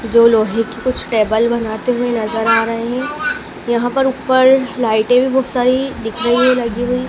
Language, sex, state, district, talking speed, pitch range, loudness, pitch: Hindi, female, Madhya Pradesh, Dhar, 195 wpm, 225-255 Hz, -15 LUFS, 240 Hz